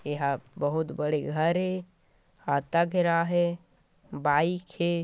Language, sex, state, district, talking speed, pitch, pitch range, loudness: Hindi, male, Chhattisgarh, Korba, 120 wpm, 165 Hz, 150-175 Hz, -28 LUFS